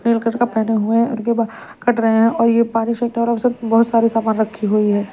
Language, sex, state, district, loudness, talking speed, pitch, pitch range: Hindi, female, Punjab, Kapurthala, -17 LUFS, 175 wpm, 230 Hz, 220-235 Hz